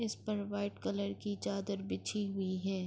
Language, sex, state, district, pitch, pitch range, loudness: Urdu, female, Andhra Pradesh, Anantapur, 195 Hz, 185-205 Hz, -38 LUFS